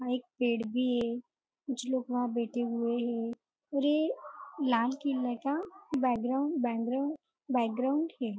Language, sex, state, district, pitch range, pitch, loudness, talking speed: Hindi, female, Maharashtra, Nagpur, 240-280 Hz, 255 Hz, -32 LUFS, 165 wpm